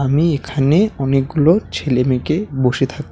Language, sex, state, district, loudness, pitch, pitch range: Bengali, male, West Bengal, Alipurduar, -17 LUFS, 135 Hz, 135-155 Hz